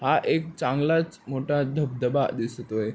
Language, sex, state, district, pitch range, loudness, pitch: Marathi, male, Maharashtra, Pune, 125-155 Hz, -26 LUFS, 135 Hz